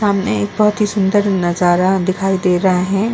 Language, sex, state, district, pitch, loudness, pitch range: Hindi, female, Uttar Pradesh, Muzaffarnagar, 195 Hz, -15 LUFS, 185-205 Hz